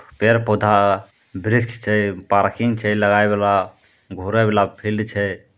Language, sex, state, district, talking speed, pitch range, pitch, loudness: Angika, male, Bihar, Bhagalpur, 120 wpm, 100-110 Hz, 105 Hz, -18 LUFS